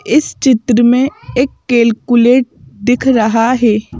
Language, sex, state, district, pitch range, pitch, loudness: Hindi, female, Madhya Pradesh, Bhopal, 230-255 Hz, 245 Hz, -12 LUFS